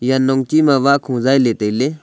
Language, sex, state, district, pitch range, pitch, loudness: Wancho, male, Arunachal Pradesh, Longding, 125-140 Hz, 135 Hz, -15 LUFS